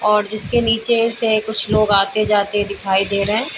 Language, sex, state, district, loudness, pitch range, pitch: Hindi, female, Chhattisgarh, Bilaspur, -15 LUFS, 205-225 Hz, 215 Hz